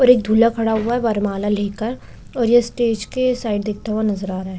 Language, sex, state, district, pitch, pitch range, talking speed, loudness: Hindi, female, Chhattisgarh, Korba, 220 Hz, 205-240 Hz, 250 wpm, -19 LUFS